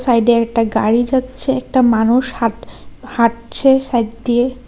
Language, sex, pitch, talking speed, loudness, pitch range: Bengali, female, 240 Hz, 130 wpm, -15 LUFS, 230-255 Hz